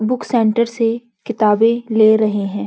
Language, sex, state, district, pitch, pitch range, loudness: Hindi, female, Uttarakhand, Uttarkashi, 225 Hz, 215-235 Hz, -15 LUFS